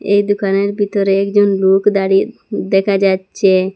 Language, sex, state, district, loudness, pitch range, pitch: Bengali, female, Assam, Hailakandi, -14 LUFS, 195-205 Hz, 195 Hz